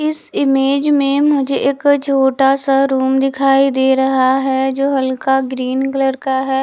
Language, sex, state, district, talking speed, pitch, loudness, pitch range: Hindi, female, Bihar, West Champaran, 165 wpm, 270 Hz, -14 LUFS, 265-275 Hz